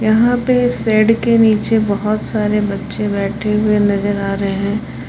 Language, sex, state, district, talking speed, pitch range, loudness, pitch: Hindi, female, Jharkhand, Palamu, 165 wpm, 200-220 Hz, -15 LUFS, 210 Hz